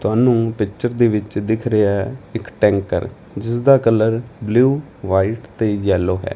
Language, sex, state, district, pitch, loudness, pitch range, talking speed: Punjabi, male, Punjab, Fazilka, 110 Hz, -18 LUFS, 100-120 Hz, 160 wpm